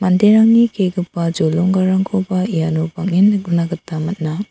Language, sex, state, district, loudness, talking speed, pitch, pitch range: Garo, female, Meghalaya, South Garo Hills, -16 LUFS, 95 wpm, 185 Hz, 170-195 Hz